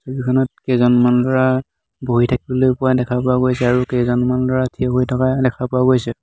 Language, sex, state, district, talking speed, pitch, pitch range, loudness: Assamese, male, Assam, Hailakandi, 175 wpm, 125 Hz, 125-130 Hz, -17 LUFS